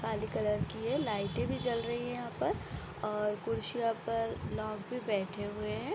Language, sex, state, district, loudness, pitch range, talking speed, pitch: Hindi, female, Bihar, Sitamarhi, -35 LUFS, 210-235 Hz, 190 wpm, 220 Hz